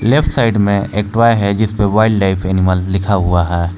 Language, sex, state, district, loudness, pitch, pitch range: Hindi, male, Jharkhand, Palamu, -14 LUFS, 100 Hz, 95-110 Hz